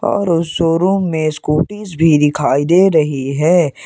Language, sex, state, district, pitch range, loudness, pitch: Hindi, male, Jharkhand, Ranchi, 150-175 Hz, -14 LUFS, 160 Hz